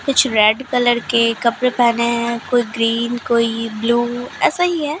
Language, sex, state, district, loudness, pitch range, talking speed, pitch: Hindi, female, Bihar, Katihar, -17 LUFS, 230-250 Hz, 170 wpm, 240 Hz